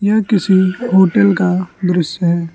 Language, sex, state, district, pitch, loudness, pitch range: Hindi, male, Arunachal Pradesh, Lower Dibang Valley, 185 Hz, -14 LUFS, 180-200 Hz